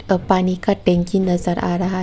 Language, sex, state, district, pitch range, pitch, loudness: Hindi, female, Tripura, West Tripura, 175-190 Hz, 185 Hz, -18 LUFS